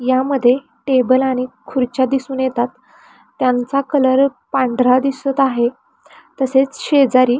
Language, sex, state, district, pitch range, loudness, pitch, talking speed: Marathi, female, Maharashtra, Pune, 255-275 Hz, -16 LUFS, 265 Hz, 105 wpm